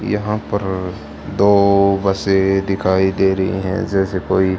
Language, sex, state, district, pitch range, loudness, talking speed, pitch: Hindi, female, Haryana, Charkhi Dadri, 95-100 Hz, -17 LUFS, 130 wpm, 95 Hz